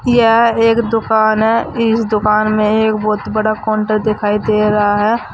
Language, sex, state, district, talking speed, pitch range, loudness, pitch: Hindi, female, Uttar Pradesh, Saharanpur, 170 wpm, 215-225 Hz, -14 LUFS, 215 Hz